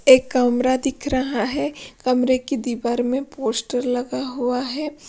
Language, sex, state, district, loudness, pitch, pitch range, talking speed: Hindi, female, Punjab, Pathankot, -22 LUFS, 255 Hz, 245-270 Hz, 155 wpm